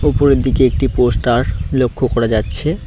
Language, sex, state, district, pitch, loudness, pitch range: Bengali, male, West Bengal, Cooch Behar, 125 Hz, -15 LUFS, 115-130 Hz